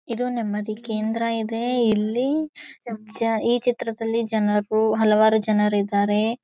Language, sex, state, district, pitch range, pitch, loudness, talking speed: Kannada, female, Karnataka, Gulbarga, 215-235 Hz, 225 Hz, -22 LUFS, 100 wpm